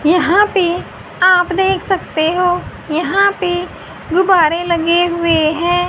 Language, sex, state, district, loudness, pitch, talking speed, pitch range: Hindi, female, Haryana, Rohtak, -14 LUFS, 355 Hz, 120 wpm, 335-370 Hz